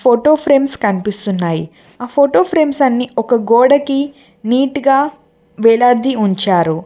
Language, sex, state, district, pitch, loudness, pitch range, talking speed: Telugu, female, Telangana, Mahabubabad, 245 Hz, -13 LUFS, 205-275 Hz, 115 wpm